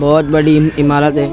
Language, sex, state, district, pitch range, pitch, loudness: Hindi, male, Maharashtra, Mumbai Suburban, 145-155 Hz, 150 Hz, -11 LUFS